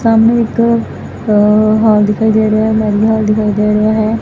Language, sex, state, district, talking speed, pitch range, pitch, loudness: Punjabi, female, Punjab, Fazilka, 200 wpm, 210-220 Hz, 215 Hz, -11 LUFS